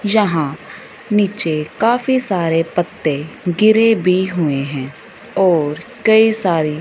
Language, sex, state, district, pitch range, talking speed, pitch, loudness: Hindi, female, Punjab, Fazilka, 155-215 Hz, 105 wpm, 180 Hz, -16 LUFS